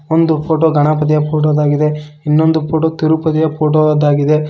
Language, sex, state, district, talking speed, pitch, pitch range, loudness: Kannada, male, Karnataka, Koppal, 135 wpm, 155 Hz, 150-160 Hz, -13 LUFS